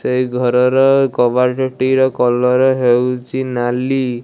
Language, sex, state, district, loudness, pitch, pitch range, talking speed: Odia, male, Odisha, Malkangiri, -15 LUFS, 125 Hz, 125-130 Hz, 85 wpm